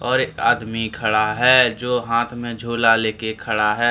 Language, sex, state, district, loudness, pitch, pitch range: Hindi, male, Jharkhand, Deoghar, -19 LUFS, 115 Hz, 110-120 Hz